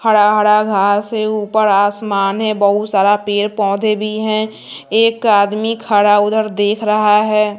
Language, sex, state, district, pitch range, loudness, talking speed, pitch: Hindi, female, Bihar, West Champaran, 205-215 Hz, -14 LUFS, 160 wpm, 210 Hz